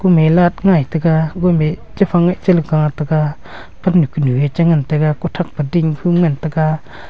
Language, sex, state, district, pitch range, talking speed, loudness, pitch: Wancho, male, Arunachal Pradesh, Longding, 155-175 Hz, 205 wpm, -15 LUFS, 160 Hz